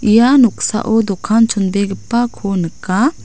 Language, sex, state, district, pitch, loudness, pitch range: Garo, female, Meghalaya, South Garo Hills, 220 Hz, -14 LUFS, 195-235 Hz